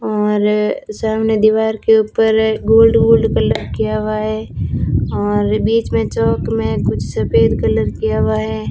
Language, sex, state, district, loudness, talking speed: Hindi, female, Rajasthan, Bikaner, -15 LUFS, 160 wpm